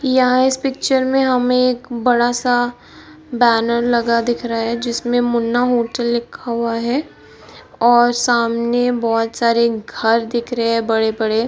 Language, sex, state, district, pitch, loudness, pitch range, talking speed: Hindi, female, Bihar, Kishanganj, 240 Hz, -17 LUFS, 235-245 Hz, 195 wpm